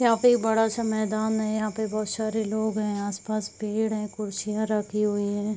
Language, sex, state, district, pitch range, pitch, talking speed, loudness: Hindi, female, Bihar, Saharsa, 210-220 Hz, 215 Hz, 215 wpm, -26 LUFS